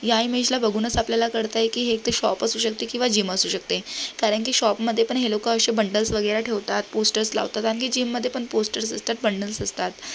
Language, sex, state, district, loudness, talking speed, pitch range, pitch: Marathi, female, Maharashtra, Solapur, -23 LUFS, 220 wpm, 215-235 Hz, 225 Hz